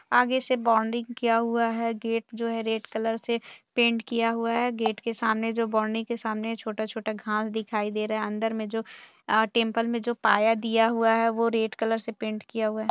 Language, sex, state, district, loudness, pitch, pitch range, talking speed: Hindi, female, Bihar, Purnia, -26 LUFS, 225 Hz, 220-230 Hz, 210 wpm